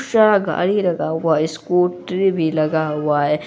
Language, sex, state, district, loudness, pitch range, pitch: Hindi, female, Bihar, Araria, -18 LUFS, 155-185 Hz, 165 Hz